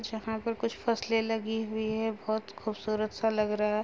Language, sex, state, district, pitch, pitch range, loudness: Hindi, female, Uttar Pradesh, Gorakhpur, 220 Hz, 215-225 Hz, -31 LUFS